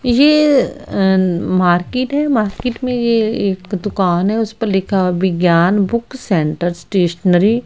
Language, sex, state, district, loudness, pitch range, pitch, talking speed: Hindi, female, Haryana, Rohtak, -15 LUFS, 180-235 Hz, 200 Hz, 140 wpm